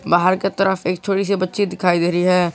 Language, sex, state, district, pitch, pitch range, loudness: Hindi, male, Jharkhand, Garhwa, 185 Hz, 180-195 Hz, -18 LUFS